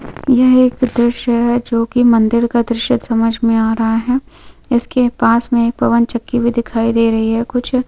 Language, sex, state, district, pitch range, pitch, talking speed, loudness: Hindi, female, Chhattisgarh, Bilaspur, 230-245 Hz, 235 Hz, 190 wpm, -14 LUFS